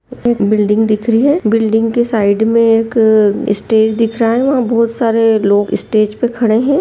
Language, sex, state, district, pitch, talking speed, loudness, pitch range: Angika, female, Bihar, Supaul, 225 Hz, 185 wpm, -12 LUFS, 215-230 Hz